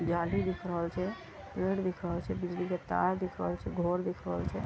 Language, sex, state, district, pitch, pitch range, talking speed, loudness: Maithili, female, Bihar, Vaishali, 175 Hz, 155-185 Hz, 230 wpm, -34 LUFS